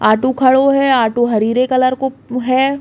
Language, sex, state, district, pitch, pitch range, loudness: Bundeli, female, Uttar Pradesh, Hamirpur, 255 Hz, 240-265 Hz, -14 LUFS